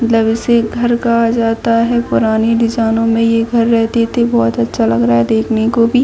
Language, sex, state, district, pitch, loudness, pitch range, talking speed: Hindi, female, Jharkhand, Jamtara, 230 Hz, -13 LUFS, 225-235 Hz, 210 wpm